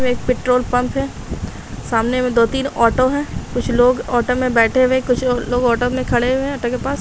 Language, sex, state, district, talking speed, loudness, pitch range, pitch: Hindi, female, Bihar, Darbhanga, 225 wpm, -17 LUFS, 245-255 Hz, 250 Hz